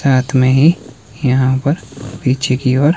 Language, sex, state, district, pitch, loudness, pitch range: Hindi, male, Himachal Pradesh, Shimla, 130 Hz, -14 LUFS, 130-140 Hz